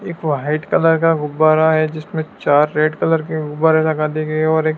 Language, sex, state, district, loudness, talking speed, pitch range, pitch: Hindi, male, Madhya Pradesh, Dhar, -16 LUFS, 225 wpm, 155-160 Hz, 155 Hz